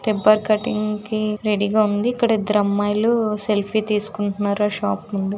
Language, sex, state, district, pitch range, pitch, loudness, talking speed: Telugu, female, Andhra Pradesh, Visakhapatnam, 205-215 Hz, 210 Hz, -20 LUFS, 125 wpm